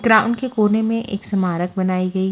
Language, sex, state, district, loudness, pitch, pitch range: Hindi, female, Haryana, Charkhi Dadri, -19 LUFS, 200 Hz, 185-225 Hz